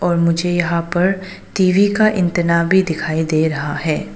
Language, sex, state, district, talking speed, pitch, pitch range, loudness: Hindi, female, Arunachal Pradesh, Papum Pare, 175 wpm, 175 Hz, 160-185 Hz, -17 LUFS